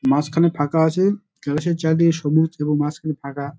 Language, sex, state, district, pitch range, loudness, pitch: Bengali, male, West Bengal, Dakshin Dinajpur, 145-165 Hz, -20 LUFS, 155 Hz